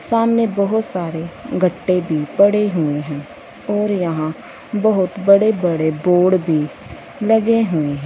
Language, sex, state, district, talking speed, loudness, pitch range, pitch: Hindi, female, Punjab, Fazilka, 135 wpm, -17 LUFS, 160-210 Hz, 185 Hz